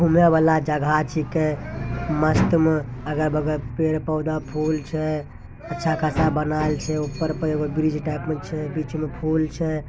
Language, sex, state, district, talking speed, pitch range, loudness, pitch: Angika, male, Bihar, Begusarai, 150 wpm, 150-160 Hz, -23 LUFS, 155 Hz